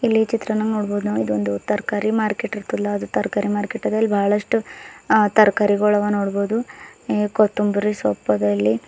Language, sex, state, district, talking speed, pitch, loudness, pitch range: Kannada, female, Karnataka, Bidar, 140 wpm, 205 Hz, -20 LUFS, 200-215 Hz